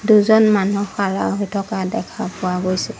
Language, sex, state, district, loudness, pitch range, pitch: Assamese, female, Assam, Sonitpur, -18 LUFS, 190-215 Hz, 200 Hz